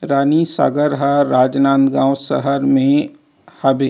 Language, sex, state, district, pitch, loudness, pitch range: Chhattisgarhi, male, Chhattisgarh, Rajnandgaon, 140 Hz, -15 LUFS, 135-165 Hz